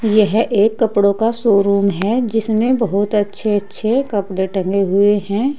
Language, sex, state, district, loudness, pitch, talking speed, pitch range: Hindi, female, Uttar Pradesh, Saharanpur, -16 LUFS, 210 Hz, 150 wpm, 200-225 Hz